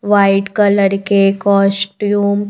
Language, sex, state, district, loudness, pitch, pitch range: Hindi, female, Madhya Pradesh, Bhopal, -13 LUFS, 200 Hz, 195-205 Hz